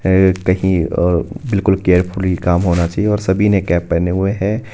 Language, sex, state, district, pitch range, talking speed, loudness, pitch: Hindi, male, Himachal Pradesh, Shimla, 90-100 Hz, 150 wpm, -15 LUFS, 95 Hz